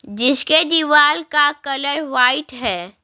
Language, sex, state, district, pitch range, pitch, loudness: Hindi, female, Bihar, Patna, 255-300 Hz, 285 Hz, -16 LUFS